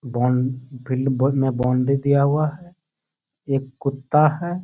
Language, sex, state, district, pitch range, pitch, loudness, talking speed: Hindi, male, Bihar, Bhagalpur, 130-150 Hz, 135 Hz, -21 LUFS, 155 wpm